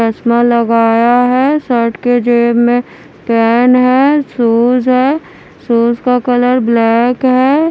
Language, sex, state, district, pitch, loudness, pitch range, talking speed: Hindi, female, Haryana, Charkhi Dadri, 245 Hz, -11 LUFS, 235-255 Hz, 125 wpm